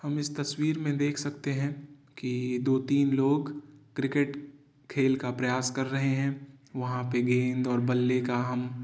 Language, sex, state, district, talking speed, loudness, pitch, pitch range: Hindi, male, Uttar Pradesh, Varanasi, 175 wpm, -29 LUFS, 135 Hz, 125-145 Hz